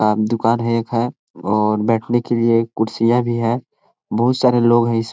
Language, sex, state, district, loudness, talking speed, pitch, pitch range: Hindi, male, Chhattisgarh, Korba, -18 LUFS, 185 wpm, 115 Hz, 110-120 Hz